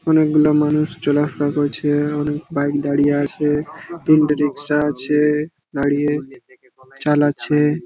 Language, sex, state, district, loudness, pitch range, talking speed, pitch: Bengali, male, West Bengal, Purulia, -18 LUFS, 145-150 Hz, 135 wpm, 150 Hz